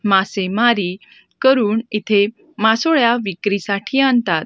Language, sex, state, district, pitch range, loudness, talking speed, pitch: Marathi, female, Maharashtra, Gondia, 200-240 Hz, -17 LUFS, 80 wpm, 220 Hz